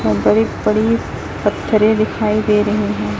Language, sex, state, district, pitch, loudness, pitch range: Hindi, female, Chhattisgarh, Raipur, 215 Hz, -16 LUFS, 205-215 Hz